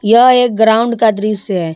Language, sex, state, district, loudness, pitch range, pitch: Hindi, female, Jharkhand, Ranchi, -11 LUFS, 210-235 Hz, 220 Hz